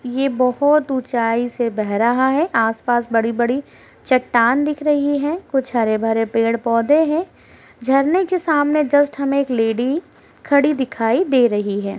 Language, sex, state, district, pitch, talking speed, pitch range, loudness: Hindi, female, Uttar Pradesh, Deoria, 255 Hz, 155 wpm, 230-290 Hz, -18 LUFS